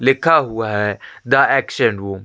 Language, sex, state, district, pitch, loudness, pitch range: Hindi, male, Chhattisgarh, Korba, 110 Hz, -16 LUFS, 100-135 Hz